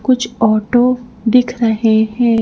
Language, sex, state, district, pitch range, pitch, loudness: Hindi, female, Madhya Pradesh, Bhopal, 220-245 Hz, 230 Hz, -14 LUFS